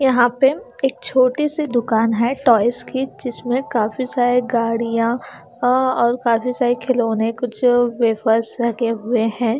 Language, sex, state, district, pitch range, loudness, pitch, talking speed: Hindi, female, Haryana, Charkhi Dadri, 230-255 Hz, -18 LUFS, 245 Hz, 150 wpm